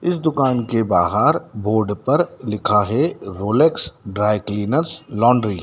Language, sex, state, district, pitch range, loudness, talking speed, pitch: Hindi, male, Madhya Pradesh, Dhar, 105-135 Hz, -19 LUFS, 140 wpm, 110 Hz